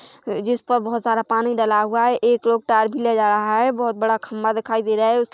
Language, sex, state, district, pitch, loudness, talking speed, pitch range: Hindi, female, Chhattisgarh, Korba, 225 Hz, -19 LUFS, 235 wpm, 220-235 Hz